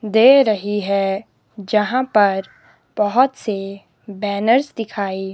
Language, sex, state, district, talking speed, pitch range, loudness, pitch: Hindi, female, Himachal Pradesh, Shimla, 100 wpm, 200-225 Hz, -18 LUFS, 205 Hz